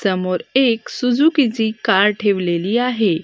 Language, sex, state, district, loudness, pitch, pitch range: Marathi, female, Maharashtra, Gondia, -17 LUFS, 220 Hz, 190-245 Hz